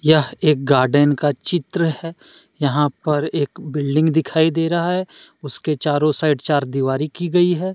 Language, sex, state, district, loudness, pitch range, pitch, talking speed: Hindi, male, Jharkhand, Deoghar, -18 LUFS, 145-165 Hz, 155 Hz, 170 wpm